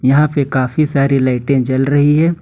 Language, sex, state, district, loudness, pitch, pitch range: Hindi, male, Jharkhand, Ranchi, -14 LUFS, 140 Hz, 130-150 Hz